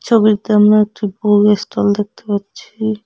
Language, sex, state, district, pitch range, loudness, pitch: Bengali, female, West Bengal, Cooch Behar, 205-215 Hz, -14 LUFS, 210 Hz